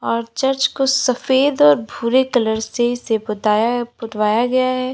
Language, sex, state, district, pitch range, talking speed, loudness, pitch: Hindi, female, Uttar Pradesh, Lalitpur, 220-260 Hz, 160 wpm, -17 LUFS, 240 Hz